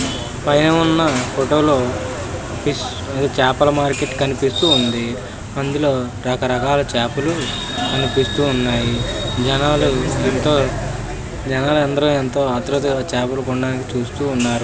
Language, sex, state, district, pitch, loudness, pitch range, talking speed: Telugu, male, Andhra Pradesh, Visakhapatnam, 130 Hz, -18 LUFS, 125-140 Hz, 100 wpm